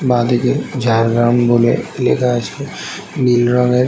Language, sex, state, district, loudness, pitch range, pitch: Bengali, male, West Bengal, Jhargram, -15 LUFS, 120-130 Hz, 125 Hz